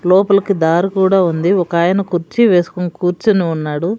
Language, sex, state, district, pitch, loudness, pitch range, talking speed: Telugu, female, Andhra Pradesh, Sri Satya Sai, 180 Hz, -14 LUFS, 170-195 Hz, 150 wpm